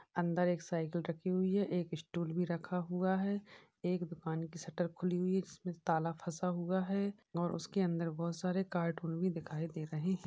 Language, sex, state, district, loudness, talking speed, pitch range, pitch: Hindi, male, Uttar Pradesh, Varanasi, -37 LUFS, 205 wpm, 170-185 Hz, 175 Hz